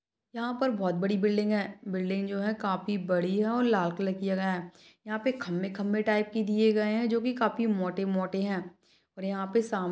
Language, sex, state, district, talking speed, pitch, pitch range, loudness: Hindi, female, Chhattisgarh, Balrampur, 220 wpm, 200 Hz, 190-220 Hz, -29 LUFS